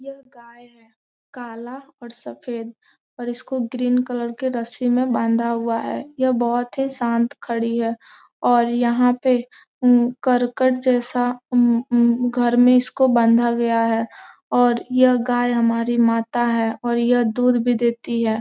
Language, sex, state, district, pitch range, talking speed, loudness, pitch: Hindi, female, Bihar, Gopalganj, 235-250 Hz, 145 wpm, -19 LUFS, 240 Hz